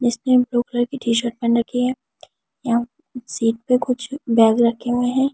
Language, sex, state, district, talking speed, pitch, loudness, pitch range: Hindi, female, Delhi, New Delhi, 200 wpm, 245 Hz, -19 LUFS, 235-255 Hz